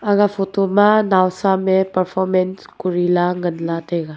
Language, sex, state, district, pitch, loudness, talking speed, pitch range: Wancho, female, Arunachal Pradesh, Longding, 185 Hz, -17 LUFS, 130 wpm, 180-195 Hz